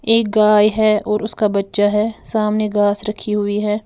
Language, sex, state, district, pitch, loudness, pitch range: Hindi, female, Uttar Pradesh, Lalitpur, 210 Hz, -17 LUFS, 210-215 Hz